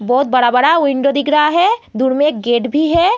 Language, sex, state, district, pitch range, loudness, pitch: Hindi, female, Bihar, Gaya, 250-315 Hz, -14 LUFS, 285 Hz